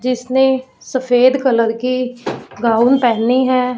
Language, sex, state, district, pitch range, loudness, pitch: Hindi, female, Punjab, Fazilka, 245-260 Hz, -15 LUFS, 250 Hz